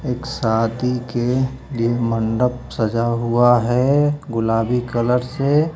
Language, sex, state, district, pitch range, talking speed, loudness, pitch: Hindi, male, Uttar Pradesh, Lucknow, 115-125 Hz, 115 wpm, -19 LUFS, 120 Hz